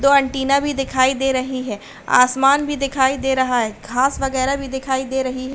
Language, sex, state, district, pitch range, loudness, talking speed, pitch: Hindi, female, Uttar Pradesh, Hamirpur, 260-270 Hz, -18 LUFS, 215 wpm, 265 Hz